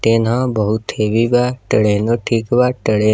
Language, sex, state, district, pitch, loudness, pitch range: Bhojpuri, male, Bihar, East Champaran, 115 Hz, -16 LUFS, 110-120 Hz